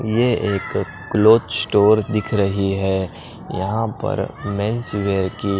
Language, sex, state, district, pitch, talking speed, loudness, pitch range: Hindi, male, Punjab, Pathankot, 105 Hz, 130 wpm, -19 LUFS, 95-110 Hz